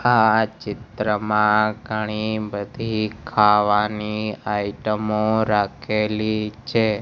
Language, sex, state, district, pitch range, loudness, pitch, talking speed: Gujarati, male, Gujarat, Gandhinagar, 105-110 Hz, -21 LUFS, 105 Hz, 70 wpm